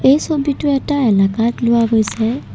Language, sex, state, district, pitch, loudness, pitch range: Assamese, female, Assam, Kamrup Metropolitan, 240 Hz, -16 LUFS, 225-280 Hz